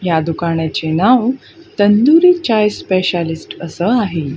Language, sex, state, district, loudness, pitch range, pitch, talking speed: Marathi, female, Maharashtra, Gondia, -14 LUFS, 165-245 Hz, 185 Hz, 110 wpm